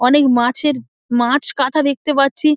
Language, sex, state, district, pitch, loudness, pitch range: Bengali, female, West Bengal, Dakshin Dinajpur, 275 Hz, -16 LUFS, 250-295 Hz